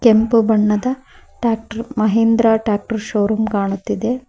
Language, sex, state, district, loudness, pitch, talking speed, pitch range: Kannada, female, Karnataka, Koppal, -17 LUFS, 225 Hz, 100 wpm, 210-230 Hz